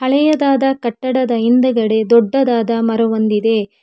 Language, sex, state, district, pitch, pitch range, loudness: Kannada, female, Karnataka, Bangalore, 235 Hz, 225-260 Hz, -14 LUFS